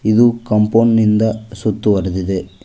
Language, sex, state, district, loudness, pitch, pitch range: Kannada, male, Karnataka, Koppal, -15 LUFS, 110 Hz, 100-110 Hz